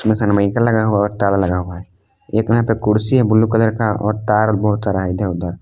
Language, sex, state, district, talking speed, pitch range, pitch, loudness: Hindi, male, Jharkhand, Palamu, 255 wpm, 100-110 Hz, 105 Hz, -16 LUFS